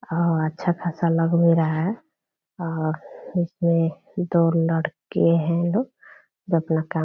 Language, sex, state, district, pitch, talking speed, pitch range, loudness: Hindi, female, Bihar, Purnia, 165 Hz, 145 wpm, 165-175 Hz, -23 LUFS